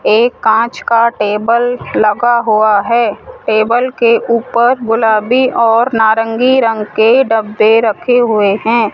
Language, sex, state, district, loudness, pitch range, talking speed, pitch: Hindi, female, Rajasthan, Jaipur, -11 LUFS, 220-240 Hz, 130 wpm, 230 Hz